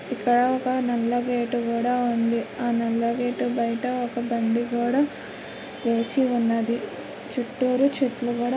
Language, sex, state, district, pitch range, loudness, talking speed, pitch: Telugu, female, Andhra Pradesh, Krishna, 235-250 Hz, -24 LUFS, 125 wpm, 240 Hz